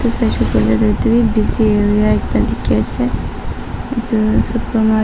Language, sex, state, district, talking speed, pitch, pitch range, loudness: Nagamese, female, Nagaland, Dimapur, 155 wpm, 215 Hz, 135-230 Hz, -16 LUFS